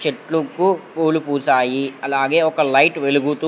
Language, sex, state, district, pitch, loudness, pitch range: Telugu, male, Andhra Pradesh, Sri Satya Sai, 150 Hz, -18 LUFS, 135-160 Hz